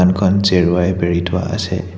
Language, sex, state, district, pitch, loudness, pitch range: Assamese, male, Assam, Hailakandi, 90 Hz, -16 LUFS, 90-95 Hz